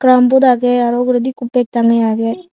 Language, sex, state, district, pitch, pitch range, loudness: Chakma, female, Tripura, Unakoti, 245 Hz, 240-255 Hz, -13 LUFS